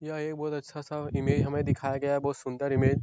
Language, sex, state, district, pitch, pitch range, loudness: Hindi, male, Bihar, Jahanabad, 140 Hz, 135-150 Hz, -30 LUFS